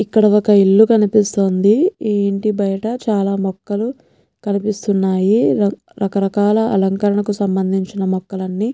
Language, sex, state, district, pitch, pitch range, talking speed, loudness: Telugu, female, Telangana, Nalgonda, 205 Hz, 195-215 Hz, 105 wpm, -16 LUFS